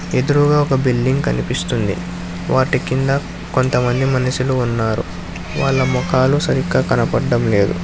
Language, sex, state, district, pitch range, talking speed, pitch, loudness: Telugu, male, Telangana, Hyderabad, 105-135 Hz, 105 wpm, 130 Hz, -17 LUFS